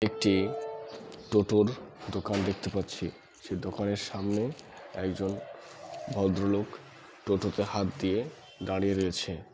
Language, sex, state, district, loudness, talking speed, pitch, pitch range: Bengali, male, West Bengal, Malda, -31 LUFS, 105 wpm, 100 Hz, 95-105 Hz